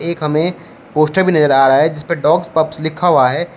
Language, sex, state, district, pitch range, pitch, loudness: Hindi, male, Uttar Pradesh, Shamli, 155-170 Hz, 160 Hz, -14 LUFS